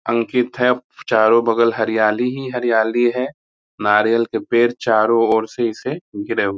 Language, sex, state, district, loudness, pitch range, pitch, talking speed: Hindi, male, Bihar, Muzaffarpur, -18 LUFS, 110-120 Hz, 115 Hz, 155 wpm